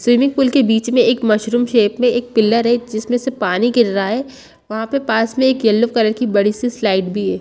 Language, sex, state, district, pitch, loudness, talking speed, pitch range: Hindi, female, Chhattisgarh, Bastar, 235 Hz, -16 LUFS, 250 wpm, 215-245 Hz